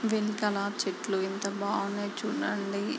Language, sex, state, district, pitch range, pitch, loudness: Telugu, female, Andhra Pradesh, Guntur, 200-205 Hz, 200 Hz, -31 LUFS